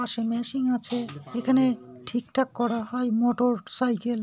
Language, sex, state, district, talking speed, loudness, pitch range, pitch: Bengali, male, West Bengal, North 24 Parganas, 130 wpm, -26 LUFS, 230-250 Hz, 240 Hz